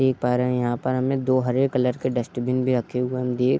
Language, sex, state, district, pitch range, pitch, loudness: Hindi, male, Bihar, Darbhanga, 125-130 Hz, 125 Hz, -23 LUFS